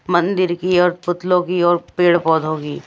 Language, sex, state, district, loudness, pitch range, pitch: Hindi, female, Odisha, Malkangiri, -17 LUFS, 175-180 Hz, 175 Hz